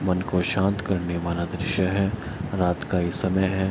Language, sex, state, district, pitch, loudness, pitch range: Hindi, male, Bihar, Araria, 95 Hz, -25 LUFS, 90-95 Hz